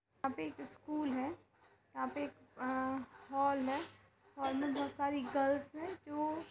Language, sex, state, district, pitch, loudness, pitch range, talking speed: Hindi, female, Uttar Pradesh, Budaun, 280 Hz, -39 LUFS, 265-295 Hz, 175 wpm